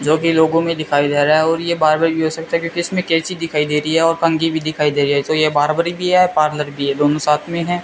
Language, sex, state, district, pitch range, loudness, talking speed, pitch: Hindi, male, Rajasthan, Bikaner, 150-165 Hz, -16 LUFS, 315 wpm, 160 Hz